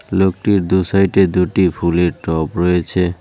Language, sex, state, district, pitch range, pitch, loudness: Bengali, male, West Bengal, Cooch Behar, 85-95 Hz, 90 Hz, -16 LUFS